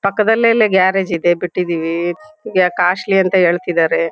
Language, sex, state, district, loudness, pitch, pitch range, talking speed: Kannada, female, Karnataka, Shimoga, -15 LUFS, 180 Hz, 175-195 Hz, 130 wpm